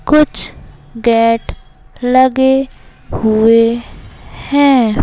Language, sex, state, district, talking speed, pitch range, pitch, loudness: Hindi, male, Madhya Pradesh, Bhopal, 60 wpm, 230-265 Hz, 245 Hz, -12 LUFS